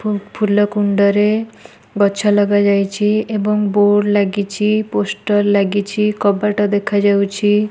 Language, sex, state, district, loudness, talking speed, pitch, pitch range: Odia, female, Odisha, Malkangiri, -15 LUFS, 80 wpm, 205 Hz, 200-210 Hz